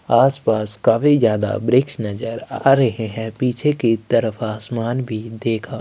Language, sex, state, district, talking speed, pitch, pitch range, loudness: Hindi, male, Chhattisgarh, Sukma, 145 wpm, 115 Hz, 110-130 Hz, -19 LUFS